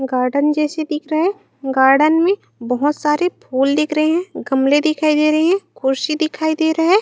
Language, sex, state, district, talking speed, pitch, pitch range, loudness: Chhattisgarhi, female, Chhattisgarh, Raigarh, 195 wpm, 305 Hz, 275-320 Hz, -17 LUFS